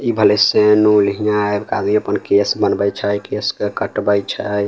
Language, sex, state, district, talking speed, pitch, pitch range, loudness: Maithili, male, Bihar, Samastipur, 195 wpm, 105 Hz, 100-105 Hz, -16 LUFS